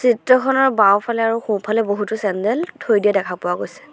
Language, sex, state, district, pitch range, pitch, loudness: Assamese, female, Assam, Sonitpur, 205-240 Hz, 215 Hz, -18 LUFS